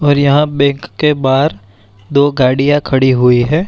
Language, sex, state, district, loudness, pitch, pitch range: Hindi, male, Bihar, Araria, -12 LUFS, 140 Hz, 130-145 Hz